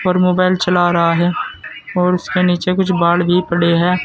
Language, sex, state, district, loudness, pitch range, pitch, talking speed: Hindi, male, Uttar Pradesh, Saharanpur, -15 LUFS, 175-185 Hz, 180 Hz, 190 wpm